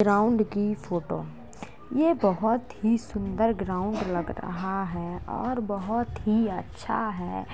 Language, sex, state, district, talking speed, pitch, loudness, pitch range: Hindi, female, Uttar Pradesh, Jalaun, 125 wpm, 205 Hz, -28 LUFS, 185-225 Hz